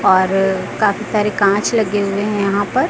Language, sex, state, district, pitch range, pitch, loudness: Hindi, female, Chhattisgarh, Raipur, 200-210 Hz, 205 Hz, -16 LUFS